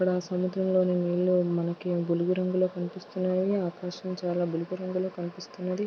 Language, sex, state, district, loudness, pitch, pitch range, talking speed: Telugu, female, Andhra Pradesh, Guntur, -29 LUFS, 180 Hz, 175-185 Hz, 110 wpm